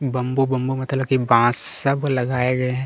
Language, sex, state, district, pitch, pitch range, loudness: Hindi, male, Chhattisgarh, Kabirdham, 130 Hz, 125-135 Hz, -20 LUFS